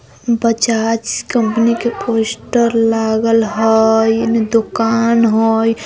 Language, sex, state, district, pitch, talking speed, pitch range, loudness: Bajjika, female, Bihar, Vaishali, 225 Hz, 90 wpm, 225-230 Hz, -14 LUFS